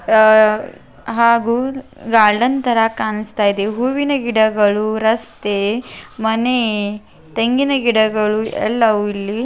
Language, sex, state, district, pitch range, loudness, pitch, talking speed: Kannada, female, Karnataka, Belgaum, 215-240 Hz, -16 LUFS, 220 Hz, 95 wpm